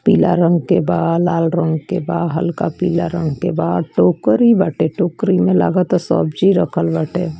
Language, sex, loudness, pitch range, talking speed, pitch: Bhojpuri, female, -16 LUFS, 165-180 Hz, 170 wpm, 170 Hz